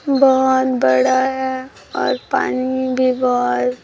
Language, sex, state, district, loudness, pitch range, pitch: Hindi, female, Chhattisgarh, Raipur, -17 LUFS, 250-260 Hz, 260 Hz